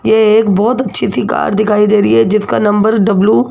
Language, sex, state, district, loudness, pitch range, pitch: Hindi, female, Rajasthan, Jaipur, -11 LUFS, 205-215 Hz, 210 Hz